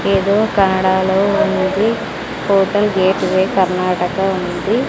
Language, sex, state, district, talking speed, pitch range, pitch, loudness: Telugu, female, Andhra Pradesh, Sri Satya Sai, 85 wpm, 190-200 Hz, 195 Hz, -15 LUFS